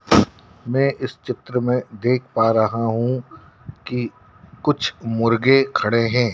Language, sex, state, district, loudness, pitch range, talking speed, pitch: Hindi, male, Madhya Pradesh, Dhar, -20 LUFS, 115-130 Hz, 125 wpm, 120 Hz